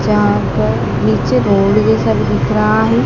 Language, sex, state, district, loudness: Hindi, female, Madhya Pradesh, Dhar, -13 LUFS